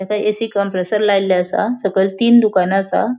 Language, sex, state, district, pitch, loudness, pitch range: Konkani, female, Goa, North and South Goa, 200 Hz, -16 LUFS, 190-215 Hz